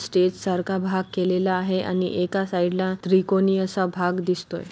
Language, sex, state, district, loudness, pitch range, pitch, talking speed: Marathi, female, Maharashtra, Solapur, -23 LUFS, 180-190 Hz, 185 Hz, 165 wpm